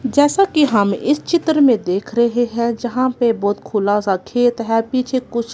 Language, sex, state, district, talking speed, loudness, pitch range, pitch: Hindi, female, Punjab, Kapurthala, 195 wpm, -17 LUFS, 225-260 Hz, 240 Hz